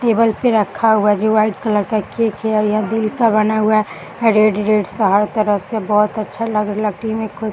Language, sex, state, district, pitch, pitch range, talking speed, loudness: Hindi, female, Bihar, Samastipur, 215 Hz, 210-220 Hz, 215 wpm, -16 LUFS